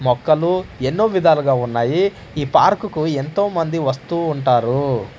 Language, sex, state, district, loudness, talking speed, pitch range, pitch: Telugu, male, Andhra Pradesh, Manyam, -18 LUFS, 105 wpm, 130-170 Hz, 150 Hz